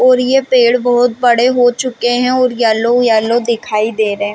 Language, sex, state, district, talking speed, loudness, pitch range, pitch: Hindi, female, Chhattisgarh, Balrampur, 205 wpm, -12 LUFS, 225-250 Hz, 245 Hz